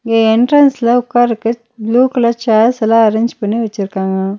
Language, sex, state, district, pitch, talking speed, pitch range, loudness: Tamil, female, Tamil Nadu, Nilgiris, 230 Hz, 135 wpm, 220-240 Hz, -13 LUFS